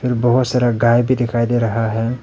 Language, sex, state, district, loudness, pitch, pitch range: Hindi, male, Arunachal Pradesh, Papum Pare, -16 LUFS, 120 Hz, 115-125 Hz